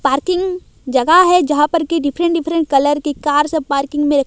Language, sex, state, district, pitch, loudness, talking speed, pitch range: Hindi, female, Odisha, Malkangiri, 300 Hz, -15 LUFS, 195 wpm, 285-335 Hz